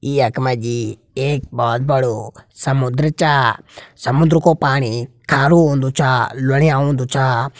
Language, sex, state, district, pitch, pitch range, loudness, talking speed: Garhwali, male, Uttarakhand, Tehri Garhwal, 135 Hz, 120-145 Hz, -16 LUFS, 125 wpm